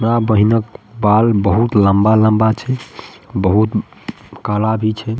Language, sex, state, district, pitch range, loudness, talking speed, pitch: Maithili, male, Bihar, Madhepura, 105-110 Hz, -15 LUFS, 115 wpm, 110 Hz